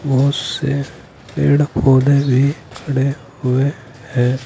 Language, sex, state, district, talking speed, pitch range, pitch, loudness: Hindi, male, Uttar Pradesh, Saharanpur, 110 wpm, 130-140 Hz, 135 Hz, -17 LUFS